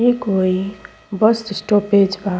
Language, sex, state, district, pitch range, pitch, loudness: Bhojpuri, female, Uttar Pradesh, Ghazipur, 195-215 Hz, 205 Hz, -17 LUFS